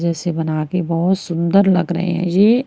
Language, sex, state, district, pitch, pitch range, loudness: Hindi, female, Haryana, Rohtak, 175 Hz, 170-185 Hz, -17 LUFS